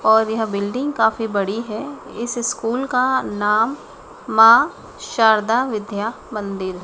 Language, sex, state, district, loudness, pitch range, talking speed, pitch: Hindi, female, Madhya Pradesh, Dhar, -19 LUFS, 210-240 Hz, 125 wpm, 225 Hz